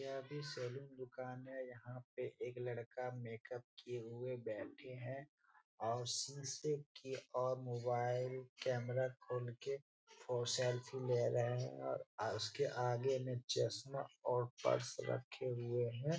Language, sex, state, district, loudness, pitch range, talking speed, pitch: Hindi, male, Bihar, Jahanabad, -43 LUFS, 120-130 Hz, 135 wpm, 125 Hz